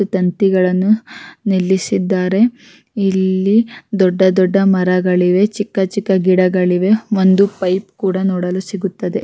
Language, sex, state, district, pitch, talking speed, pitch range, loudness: Kannada, female, Karnataka, Raichur, 190 Hz, 90 wpm, 185-200 Hz, -15 LUFS